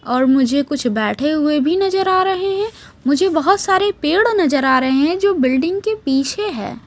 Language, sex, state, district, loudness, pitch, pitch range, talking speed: Hindi, female, Maharashtra, Mumbai Suburban, -16 LUFS, 320 Hz, 270-385 Hz, 200 wpm